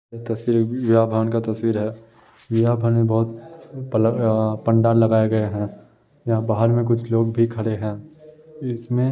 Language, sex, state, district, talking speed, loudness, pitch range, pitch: Hindi, male, Uttar Pradesh, Muzaffarnagar, 140 wpm, -20 LUFS, 110-120 Hz, 115 Hz